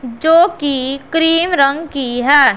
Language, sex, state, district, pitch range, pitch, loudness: Hindi, female, Punjab, Pathankot, 265-325 Hz, 280 Hz, -13 LUFS